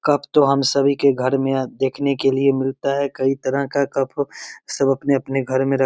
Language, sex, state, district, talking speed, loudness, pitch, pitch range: Hindi, male, Bihar, Begusarai, 225 wpm, -19 LUFS, 135 Hz, 135-140 Hz